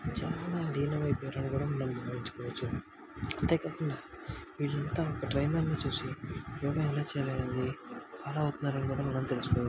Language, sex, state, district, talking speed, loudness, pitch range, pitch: Telugu, male, Telangana, Karimnagar, 115 wpm, -34 LUFS, 135-145 Hz, 140 Hz